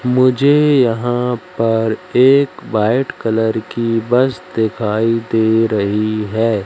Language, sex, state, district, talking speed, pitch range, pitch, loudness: Hindi, male, Madhya Pradesh, Katni, 110 wpm, 110-125 Hz, 115 Hz, -15 LUFS